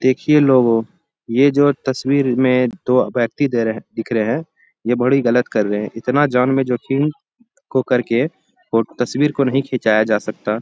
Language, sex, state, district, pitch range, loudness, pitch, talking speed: Hindi, male, Bihar, Bhagalpur, 115-140 Hz, -17 LUFS, 125 Hz, 180 wpm